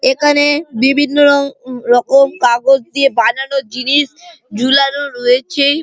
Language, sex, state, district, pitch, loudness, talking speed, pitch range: Bengali, male, West Bengal, Malda, 275 Hz, -12 LUFS, 95 wpm, 255-290 Hz